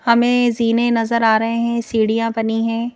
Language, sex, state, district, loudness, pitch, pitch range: Hindi, female, Madhya Pradesh, Bhopal, -17 LUFS, 230 Hz, 225-235 Hz